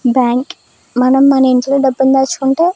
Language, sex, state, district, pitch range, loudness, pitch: Telugu, female, Andhra Pradesh, Krishna, 255-275 Hz, -12 LUFS, 265 Hz